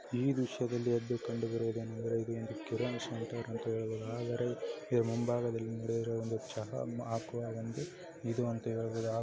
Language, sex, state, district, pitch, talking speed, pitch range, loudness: Kannada, male, Karnataka, Dakshina Kannada, 115 Hz, 70 wpm, 115-120 Hz, -37 LUFS